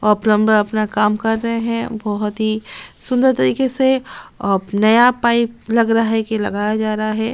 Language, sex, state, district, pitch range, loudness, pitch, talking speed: Hindi, female, Chhattisgarh, Sukma, 210-230 Hz, -17 LUFS, 220 Hz, 180 wpm